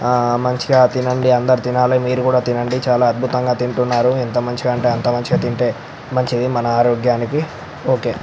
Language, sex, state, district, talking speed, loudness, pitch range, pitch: Telugu, male, Andhra Pradesh, Visakhapatnam, 190 wpm, -17 LUFS, 120-125 Hz, 125 Hz